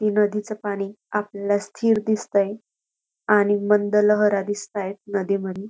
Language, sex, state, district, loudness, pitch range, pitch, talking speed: Marathi, female, Maharashtra, Dhule, -22 LUFS, 200-210 Hz, 205 Hz, 125 wpm